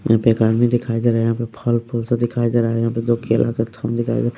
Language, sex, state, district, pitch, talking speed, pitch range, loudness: Hindi, male, Bihar, West Champaran, 115 Hz, 355 wpm, 115-120 Hz, -19 LUFS